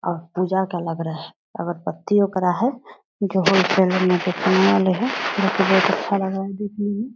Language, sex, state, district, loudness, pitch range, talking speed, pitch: Hindi, female, Bihar, Purnia, -20 LUFS, 175-200 Hz, 200 wpm, 190 Hz